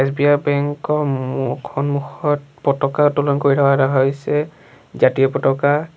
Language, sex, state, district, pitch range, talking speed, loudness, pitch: Assamese, male, Assam, Sonitpur, 135-145 Hz, 120 wpm, -18 LUFS, 140 Hz